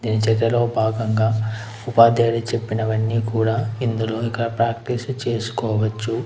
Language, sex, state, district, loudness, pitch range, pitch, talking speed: Telugu, male, Andhra Pradesh, Anantapur, -21 LUFS, 110-115 Hz, 115 Hz, 65 wpm